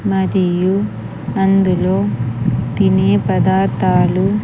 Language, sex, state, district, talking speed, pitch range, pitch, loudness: Telugu, female, Andhra Pradesh, Sri Satya Sai, 55 wpm, 120-195 Hz, 185 Hz, -15 LUFS